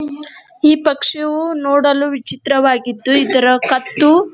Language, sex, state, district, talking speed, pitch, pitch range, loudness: Kannada, female, Karnataka, Dharwad, 95 wpm, 285 Hz, 270-305 Hz, -13 LUFS